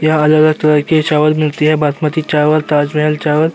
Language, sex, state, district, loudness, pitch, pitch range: Hindi, male, Uttar Pradesh, Jyotiba Phule Nagar, -13 LUFS, 155 Hz, 150-155 Hz